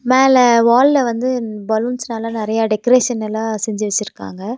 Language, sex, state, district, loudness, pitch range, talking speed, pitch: Tamil, female, Tamil Nadu, Nilgiris, -16 LUFS, 215-250 Hz, 105 wpm, 230 Hz